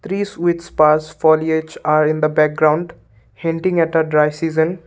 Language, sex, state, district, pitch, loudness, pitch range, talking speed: English, male, Assam, Kamrup Metropolitan, 160 Hz, -17 LUFS, 155-165 Hz, 150 wpm